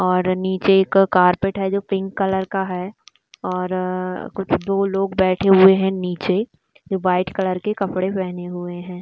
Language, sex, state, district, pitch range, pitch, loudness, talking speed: Hindi, female, Bihar, East Champaran, 185-195 Hz, 190 Hz, -19 LUFS, 175 wpm